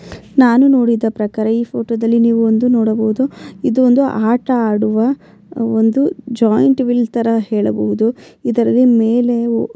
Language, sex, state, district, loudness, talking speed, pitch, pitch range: Kannada, female, Karnataka, Bellary, -14 LUFS, 130 wpm, 235 Hz, 225-250 Hz